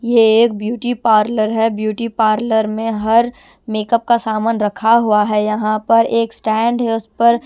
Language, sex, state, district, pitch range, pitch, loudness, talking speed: Hindi, female, Punjab, Kapurthala, 215-235 Hz, 225 Hz, -15 LUFS, 175 wpm